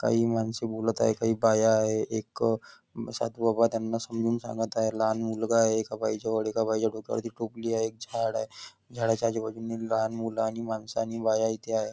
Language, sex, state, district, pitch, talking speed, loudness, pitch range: Marathi, male, Maharashtra, Nagpur, 115 Hz, 205 wpm, -28 LUFS, 110-115 Hz